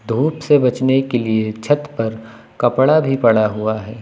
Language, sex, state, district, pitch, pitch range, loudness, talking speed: Hindi, male, Uttar Pradesh, Lucknow, 115 Hz, 110-135 Hz, -17 LUFS, 180 wpm